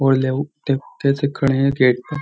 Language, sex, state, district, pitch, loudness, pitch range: Hindi, male, Uttar Pradesh, Jyotiba Phule Nagar, 135 Hz, -19 LUFS, 135-140 Hz